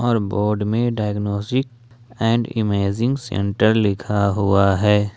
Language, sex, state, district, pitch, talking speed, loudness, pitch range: Hindi, male, Jharkhand, Ranchi, 105 Hz, 105 wpm, -19 LUFS, 100-120 Hz